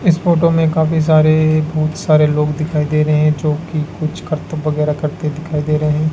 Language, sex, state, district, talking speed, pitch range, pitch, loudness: Hindi, male, Rajasthan, Bikaner, 215 wpm, 150-160 Hz, 155 Hz, -15 LUFS